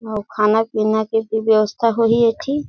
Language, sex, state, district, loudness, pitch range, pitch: Surgujia, female, Chhattisgarh, Sarguja, -17 LUFS, 215-230 Hz, 220 Hz